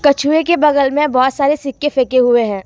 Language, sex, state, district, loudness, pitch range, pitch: Hindi, female, Jharkhand, Deoghar, -14 LUFS, 255-295 Hz, 280 Hz